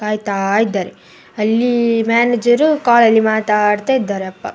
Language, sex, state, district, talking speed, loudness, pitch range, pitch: Kannada, female, Karnataka, Dakshina Kannada, 130 wpm, -15 LUFS, 210-240 Hz, 220 Hz